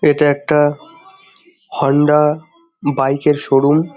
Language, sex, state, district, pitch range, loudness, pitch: Bengali, male, West Bengal, Jhargram, 145-190 Hz, -15 LUFS, 150 Hz